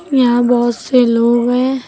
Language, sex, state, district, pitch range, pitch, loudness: Hindi, female, Uttar Pradesh, Lucknow, 240-255 Hz, 245 Hz, -13 LUFS